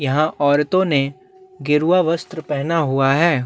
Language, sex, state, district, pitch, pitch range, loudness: Hindi, male, Chhattisgarh, Bastar, 155 Hz, 145-175 Hz, -18 LUFS